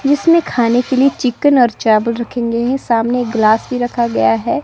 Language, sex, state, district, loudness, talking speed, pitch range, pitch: Hindi, female, Himachal Pradesh, Shimla, -14 LUFS, 220 wpm, 230-265 Hz, 245 Hz